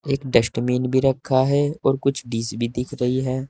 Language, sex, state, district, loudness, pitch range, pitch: Hindi, male, Uttar Pradesh, Saharanpur, -21 LUFS, 125-135 Hz, 130 Hz